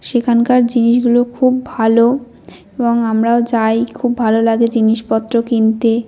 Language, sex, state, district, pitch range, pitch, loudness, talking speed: Bengali, female, West Bengal, North 24 Parganas, 225-245 Hz, 235 Hz, -14 LUFS, 130 wpm